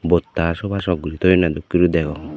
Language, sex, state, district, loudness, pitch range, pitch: Chakma, male, Tripura, Dhalai, -19 LUFS, 75-90 Hz, 85 Hz